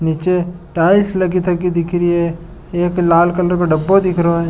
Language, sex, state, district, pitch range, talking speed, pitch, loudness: Marwari, male, Rajasthan, Nagaur, 170-180 Hz, 200 wpm, 175 Hz, -15 LUFS